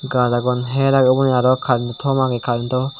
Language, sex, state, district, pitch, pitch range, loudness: Chakma, male, Tripura, Dhalai, 130 Hz, 125-135 Hz, -17 LUFS